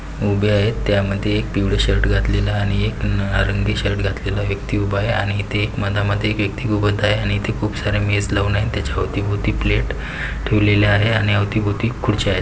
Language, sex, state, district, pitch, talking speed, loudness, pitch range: Marathi, male, Maharashtra, Pune, 100 Hz, 185 wpm, -19 LUFS, 100-105 Hz